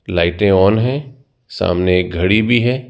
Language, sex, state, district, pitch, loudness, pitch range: Hindi, male, Rajasthan, Jaipur, 105 Hz, -15 LUFS, 90-125 Hz